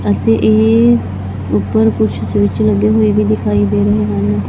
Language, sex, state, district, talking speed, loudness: Punjabi, female, Punjab, Fazilka, 160 wpm, -13 LUFS